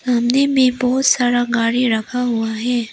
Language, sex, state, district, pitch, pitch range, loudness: Hindi, female, Arunachal Pradesh, Lower Dibang Valley, 245 Hz, 235-255 Hz, -17 LUFS